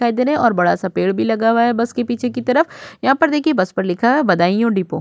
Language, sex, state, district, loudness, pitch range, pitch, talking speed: Hindi, female, Uttar Pradesh, Budaun, -17 LUFS, 190-250 Hz, 235 Hz, 310 wpm